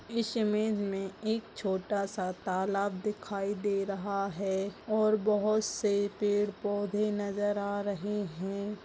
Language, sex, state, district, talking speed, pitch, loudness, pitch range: Hindi, female, Chhattisgarh, Bastar, 130 wpm, 205 Hz, -32 LUFS, 195-210 Hz